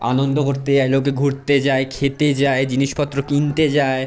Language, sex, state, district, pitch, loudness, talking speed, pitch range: Bengali, male, West Bengal, Jalpaiguri, 140 Hz, -18 LUFS, 160 wpm, 135-145 Hz